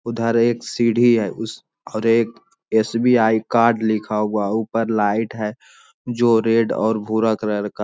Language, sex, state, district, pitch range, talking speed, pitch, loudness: Hindi, male, Bihar, Jamui, 110-115 Hz, 160 wpm, 115 Hz, -19 LUFS